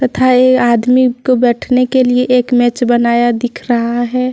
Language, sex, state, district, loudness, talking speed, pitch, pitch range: Hindi, female, Jharkhand, Deoghar, -12 LUFS, 180 wpm, 250 Hz, 240-255 Hz